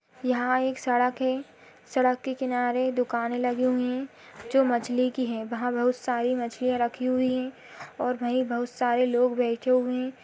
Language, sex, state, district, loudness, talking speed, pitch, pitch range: Hindi, female, Uttar Pradesh, Etah, -26 LUFS, 175 wpm, 250 Hz, 245-255 Hz